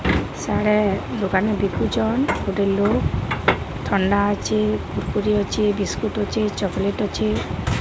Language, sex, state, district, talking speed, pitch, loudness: Odia, male, Odisha, Sambalpur, 100 wpm, 195 Hz, -21 LUFS